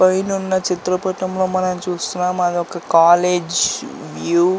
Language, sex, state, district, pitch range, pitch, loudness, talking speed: Telugu, male, Andhra Pradesh, Visakhapatnam, 175-185 Hz, 180 Hz, -18 LUFS, 130 wpm